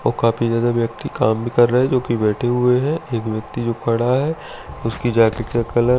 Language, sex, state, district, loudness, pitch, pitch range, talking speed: Hindi, male, Delhi, New Delhi, -19 LUFS, 120 Hz, 115-125 Hz, 240 wpm